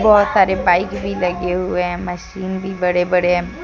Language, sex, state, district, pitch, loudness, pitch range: Hindi, female, Jharkhand, Deoghar, 180 Hz, -18 LUFS, 180-190 Hz